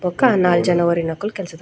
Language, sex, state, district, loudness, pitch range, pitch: Tulu, female, Karnataka, Dakshina Kannada, -18 LUFS, 170-195 Hz, 175 Hz